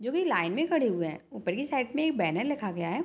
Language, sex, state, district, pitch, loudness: Hindi, female, Bihar, Madhepura, 265 Hz, -29 LUFS